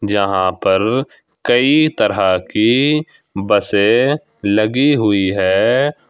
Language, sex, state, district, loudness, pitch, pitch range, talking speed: Hindi, male, Jharkhand, Ranchi, -15 LUFS, 110 Hz, 100-140 Hz, 90 wpm